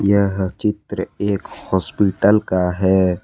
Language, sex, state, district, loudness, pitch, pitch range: Hindi, male, Jharkhand, Ranchi, -19 LUFS, 95 Hz, 95-100 Hz